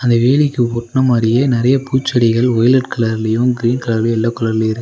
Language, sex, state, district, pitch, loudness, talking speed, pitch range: Tamil, male, Tamil Nadu, Nilgiris, 120 Hz, -14 LUFS, 160 wpm, 115-130 Hz